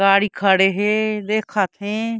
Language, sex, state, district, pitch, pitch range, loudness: Chhattisgarhi, female, Chhattisgarh, Korba, 205 Hz, 195-215 Hz, -19 LUFS